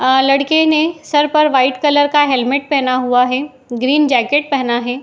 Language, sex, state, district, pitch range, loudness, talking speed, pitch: Hindi, female, Uttar Pradesh, Jyotiba Phule Nagar, 255-295 Hz, -14 LUFS, 190 wpm, 275 Hz